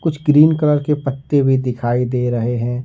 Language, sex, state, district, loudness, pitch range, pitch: Hindi, male, Jharkhand, Ranchi, -16 LUFS, 125-150 Hz, 135 Hz